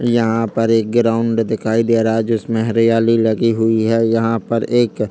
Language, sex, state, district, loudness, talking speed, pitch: Hindi, male, Chhattisgarh, Kabirdham, -16 LUFS, 190 wpm, 115 Hz